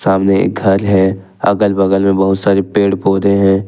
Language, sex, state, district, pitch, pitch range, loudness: Hindi, male, Jharkhand, Ranchi, 95 Hz, 95-100 Hz, -13 LUFS